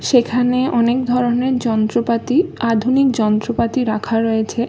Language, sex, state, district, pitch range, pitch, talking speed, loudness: Bengali, female, West Bengal, Kolkata, 225-250 Hz, 240 Hz, 100 wpm, -17 LUFS